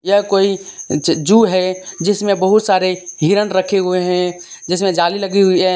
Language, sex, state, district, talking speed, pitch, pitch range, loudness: Hindi, male, Jharkhand, Deoghar, 165 wpm, 185 Hz, 180-200 Hz, -15 LUFS